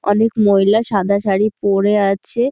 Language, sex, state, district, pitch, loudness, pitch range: Bengali, female, West Bengal, Dakshin Dinajpur, 205 Hz, -15 LUFS, 200-215 Hz